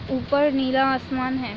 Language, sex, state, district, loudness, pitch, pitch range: Hindi, female, Chhattisgarh, Raigarh, -22 LUFS, 265 Hz, 260-270 Hz